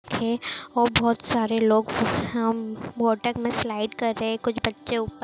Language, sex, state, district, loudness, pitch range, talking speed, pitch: Hindi, female, Maharashtra, Dhule, -25 LUFS, 225-240 Hz, 160 wpm, 230 Hz